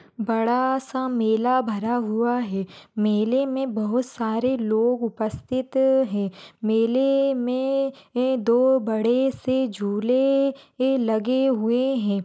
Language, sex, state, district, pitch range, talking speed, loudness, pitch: Hindi, female, Rajasthan, Churu, 220-260 Hz, 110 wpm, -23 LUFS, 245 Hz